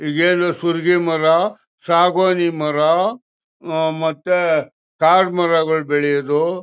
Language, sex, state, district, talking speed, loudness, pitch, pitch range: Kannada, male, Karnataka, Mysore, 90 wpm, -17 LUFS, 165 Hz, 160-175 Hz